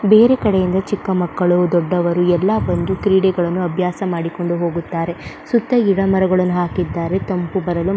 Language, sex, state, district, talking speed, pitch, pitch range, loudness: Kannada, female, Karnataka, Belgaum, 120 wpm, 180 Hz, 175-195 Hz, -17 LUFS